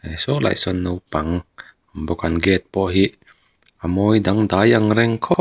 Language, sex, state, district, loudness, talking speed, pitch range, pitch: Mizo, male, Mizoram, Aizawl, -19 LUFS, 165 wpm, 85-110 Hz, 95 Hz